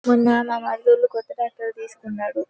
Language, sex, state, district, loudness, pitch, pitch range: Telugu, female, Telangana, Karimnagar, -21 LUFS, 235 Hz, 225-265 Hz